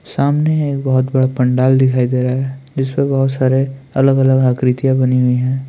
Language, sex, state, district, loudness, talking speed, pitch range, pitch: Hindi, male, Uttarakhand, Tehri Garhwal, -15 LUFS, 180 wpm, 130-135 Hz, 130 Hz